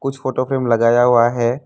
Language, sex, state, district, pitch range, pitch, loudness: Hindi, male, Assam, Kamrup Metropolitan, 120-130 Hz, 125 Hz, -16 LUFS